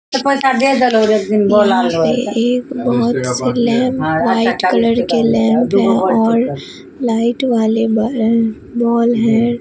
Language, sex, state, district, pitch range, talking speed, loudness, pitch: Hindi, female, Bihar, Katihar, 225-245 Hz, 105 wpm, -14 LUFS, 235 Hz